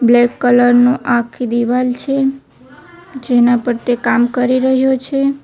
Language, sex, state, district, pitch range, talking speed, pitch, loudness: Gujarati, female, Gujarat, Valsad, 240-265 Hz, 145 wpm, 250 Hz, -14 LUFS